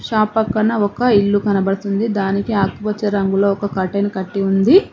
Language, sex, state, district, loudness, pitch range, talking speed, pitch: Telugu, female, Telangana, Mahabubabad, -17 LUFS, 195-215 Hz, 160 wpm, 205 Hz